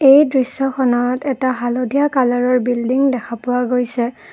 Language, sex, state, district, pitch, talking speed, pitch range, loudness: Assamese, female, Assam, Kamrup Metropolitan, 250 Hz, 125 wpm, 245-270 Hz, -17 LUFS